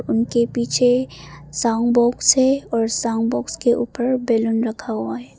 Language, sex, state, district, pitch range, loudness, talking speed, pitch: Hindi, female, Arunachal Pradesh, Papum Pare, 225-240 Hz, -19 LUFS, 155 wpm, 230 Hz